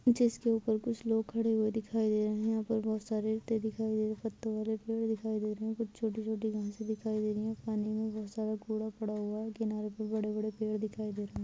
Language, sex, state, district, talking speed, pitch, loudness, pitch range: Hindi, female, Jharkhand, Jamtara, 245 wpm, 220 Hz, -34 LUFS, 215-220 Hz